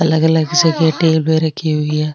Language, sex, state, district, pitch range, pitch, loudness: Marwari, female, Rajasthan, Nagaur, 155-160 Hz, 160 Hz, -14 LUFS